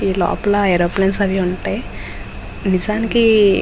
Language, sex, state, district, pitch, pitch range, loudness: Telugu, female, Andhra Pradesh, Visakhapatnam, 195 Hz, 175-205 Hz, -16 LUFS